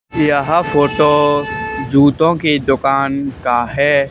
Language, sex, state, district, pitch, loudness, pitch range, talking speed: Hindi, male, Haryana, Charkhi Dadri, 145 Hz, -14 LUFS, 135-145 Hz, 100 wpm